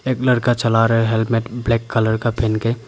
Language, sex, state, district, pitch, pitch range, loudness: Hindi, male, Arunachal Pradesh, Papum Pare, 115 Hz, 115-120 Hz, -18 LUFS